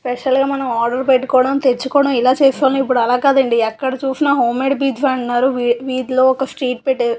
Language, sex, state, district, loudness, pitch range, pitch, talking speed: Telugu, female, Andhra Pradesh, Visakhapatnam, -16 LUFS, 250-270 Hz, 260 Hz, 200 wpm